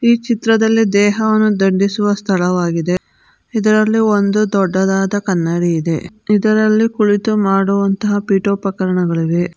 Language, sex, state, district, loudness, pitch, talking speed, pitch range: Kannada, female, Karnataka, Bangalore, -15 LUFS, 200 Hz, 95 wpm, 185-215 Hz